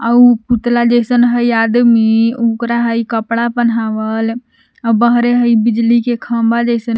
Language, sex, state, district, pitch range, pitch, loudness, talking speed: Magahi, female, Jharkhand, Palamu, 230-240 Hz, 235 Hz, -13 LUFS, 135 wpm